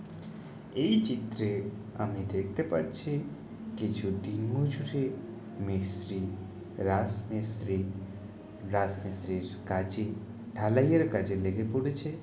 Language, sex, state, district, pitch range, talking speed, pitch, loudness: Bengali, male, West Bengal, Jalpaiguri, 95-110 Hz, 80 wpm, 105 Hz, -32 LUFS